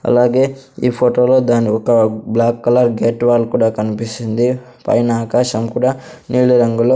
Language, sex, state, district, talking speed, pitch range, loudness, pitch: Telugu, male, Andhra Pradesh, Sri Satya Sai, 165 wpm, 115-125 Hz, -15 LUFS, 120 Hz